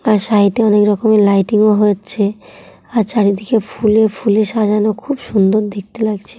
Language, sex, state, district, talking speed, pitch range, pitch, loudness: Bengali, female, West Bengal, Jhargram, 150 wpm, 205-220 Hz, 210 Hz, -14 LUFS